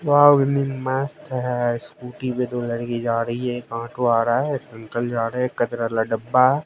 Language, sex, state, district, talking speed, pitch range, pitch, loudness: Hindi, male, Haryana, Jhajjar, 235 wpm, 120-130 Hz, 125 Hz, -22 LUFS